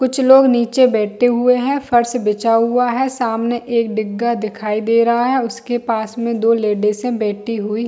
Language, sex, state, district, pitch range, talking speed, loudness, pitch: Hindi, female, Chhattisgarh, Bilaspur, 220-245 Hz, 190 wpm, -16 LUFS, 235 Hz